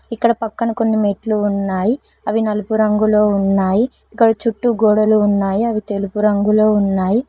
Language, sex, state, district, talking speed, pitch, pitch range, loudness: Telugu, female, Telangana, Mahabubabad, 140 wpm, 215 Hz, 205-225 Hz, -16 LUFS